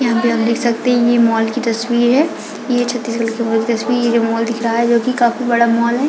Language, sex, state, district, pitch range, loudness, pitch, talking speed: Hindi, female, Chhattisgarh, Raigarh, 230-240 Hz, -15 LUFS, 235 Hz, 285 wpm